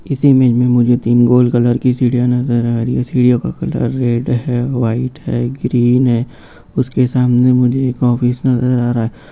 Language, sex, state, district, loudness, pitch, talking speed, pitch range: Hindi, male, Bihar, Jamui, -14 LUFS, 125 Hz, 200 wpm, 120-125 Hz